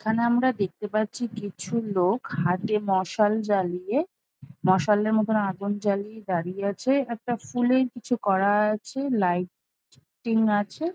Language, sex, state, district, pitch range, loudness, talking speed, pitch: Bengali, female, West Bengal, Jhargram, 195-235 Hz, -25 LUFS, 125 wpm, 210 Hz